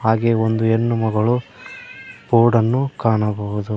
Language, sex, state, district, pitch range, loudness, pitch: Kannada, male, Karnataka, Koppal, 110-115 Hz, -18 LUFS, 115 Hz